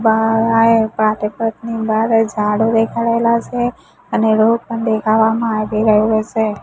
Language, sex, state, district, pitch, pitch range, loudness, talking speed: Gujarati, female, Gujarat, Gandhinagar, 225 Hz, 215-230 Hz, -15 LUFS, 100 wpm